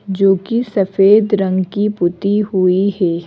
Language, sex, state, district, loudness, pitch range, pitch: Hindi, female, Madhya Pradesh, Bhopal, -15 LUFS, 185-205 Hz, 195 Hz